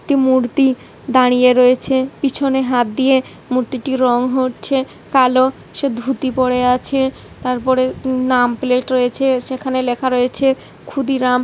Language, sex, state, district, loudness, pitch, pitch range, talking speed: Bengali, female, West Bengal, Kolkata, -16 LUFS, 255 Hz, 250-265 Hz, 120 wpm